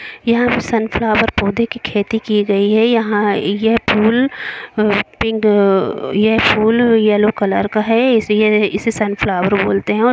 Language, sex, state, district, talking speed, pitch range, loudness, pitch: Hindi, female, Jharkhand, Jamtara, 130 wpm, 205-230 Hz, -15 LUFS, 215 Hz